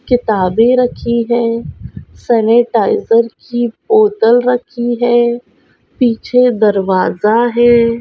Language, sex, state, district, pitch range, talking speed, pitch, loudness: Hindi, female, Rajasthan, Nagaur, 230-245 Hz, 80 wpm, 235 Hz, -12 LUFS